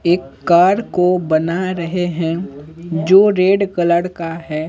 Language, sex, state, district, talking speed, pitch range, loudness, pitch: Hindi, male, Bihar, Patna, 140 wpm, 165-185 Hz, -16 LUFS, 175 Hz